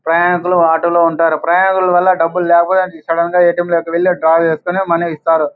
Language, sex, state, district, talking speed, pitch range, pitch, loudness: Telugu, male, Andhra Pradesh, Anantapur, 205 wpm, 165-180 Hz, 170 Hz, -13 LUFS